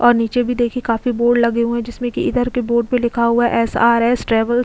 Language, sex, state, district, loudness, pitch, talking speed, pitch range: Hindi, female, Goa, North and South Goa, -17 LUFS, 235 Hz, 285 wpm, 235-245 Hz